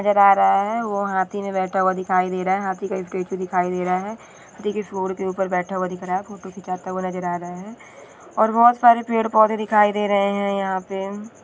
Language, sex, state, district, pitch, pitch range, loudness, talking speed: Hindi, female, Andhra Pradesh, Chittoor, 195 Hz, 185-205 Hz, -21 LUFS, 210 wpm